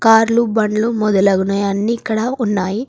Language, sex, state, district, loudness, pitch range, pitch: Telugu, female, Telangana, Komaram Bheem, -16 LUFS, 200-230 Hz, 220 Hz